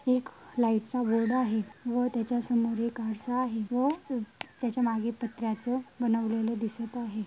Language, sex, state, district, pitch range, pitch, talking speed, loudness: Marathi, female, Maharashtra, Dhule, 225-245 Hz, 235 Hz, 150 wpm, -30 LUFS